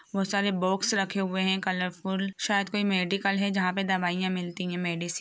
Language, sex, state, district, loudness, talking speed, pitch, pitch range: Hindi, female, Bihar, Samastipur, -28 LUFS, 205 wpm, 190 Hz, 180-195 Hz